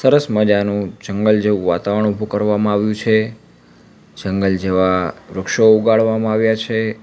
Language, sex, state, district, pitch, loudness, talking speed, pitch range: Gujarati, male, Gujarat, Valsad, 105 Hz, -16 LUFS, 130 wpm, 100-110 Hz